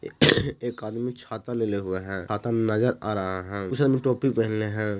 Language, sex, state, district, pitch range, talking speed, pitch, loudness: Hindi, male, Bihar, Jahanabad, 100-120 Hz, 180 wpm, 110 Hz, -25 LUFS